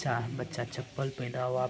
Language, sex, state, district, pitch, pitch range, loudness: Hindi, male, Bihar, Araria, 125 Hz, 125-130 Hz, -35 LUFS